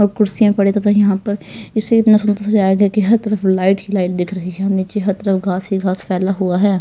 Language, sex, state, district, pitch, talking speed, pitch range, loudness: Hindi, male, Punjab, Pathankot, 200 Hz, 245 wpm, 190-210 Hz, -16 LUFS